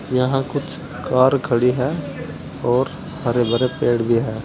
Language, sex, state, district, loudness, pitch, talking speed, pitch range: Hindi, male, Uttar Pradesh, Saharanpur, -20 LUFS, 130 Hz, 150 wpm, 120-145 Hz